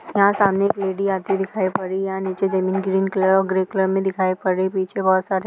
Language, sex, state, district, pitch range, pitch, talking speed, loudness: Hindi, female, Uttar Pradesh, Jyotiba Phule Nagar, 190-195 Hz, 190 Hz, 295 wpm, -20 LUFS